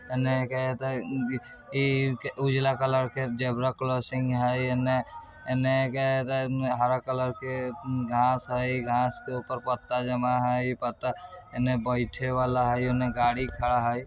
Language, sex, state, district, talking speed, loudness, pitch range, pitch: Bajjika, male, Bihar, Vaishali, 130 wpm, -28 LUFS, 125-130 Hz, 130 Hz